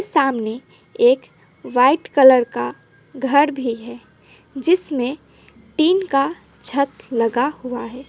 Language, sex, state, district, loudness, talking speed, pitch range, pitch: Hindi, female, West Bengal, Alipurduar, -18 LUFS, 110 wpm, 240-300 Hz, 265 Hz